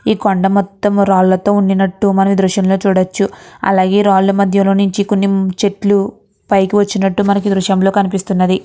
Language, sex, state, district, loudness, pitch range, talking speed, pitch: Telugu, female, Andhra Pradesh, Guntur, -13 LUFS, 195-200 Hz, 165 wpm, 195 Hz